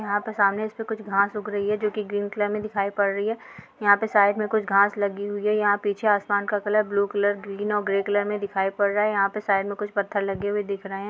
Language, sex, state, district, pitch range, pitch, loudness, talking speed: Hindi, female, Uttar Pradesh, Etah, 200-210 Hz, 205 Hz, -24 LUFS, 295 wpm